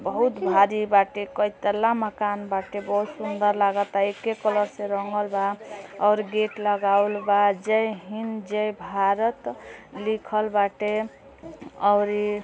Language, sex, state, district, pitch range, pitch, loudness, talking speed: Hindi, female, Uttar Pradesh, Deoria, 200-215 Hz, 205 Hz, -24 LUFS, 135 wpm